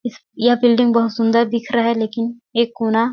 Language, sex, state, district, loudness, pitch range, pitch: Hindi, female, Chhattisgarh, Sarguja, -17 LUFS, 230-240 Hz, 235 Hz